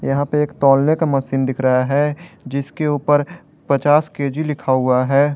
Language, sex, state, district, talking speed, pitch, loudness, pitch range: Hindi, male, Jharkhand, Garhwa, 180 wpm, 145 Hz, -17 LUFS, 135-150 Hz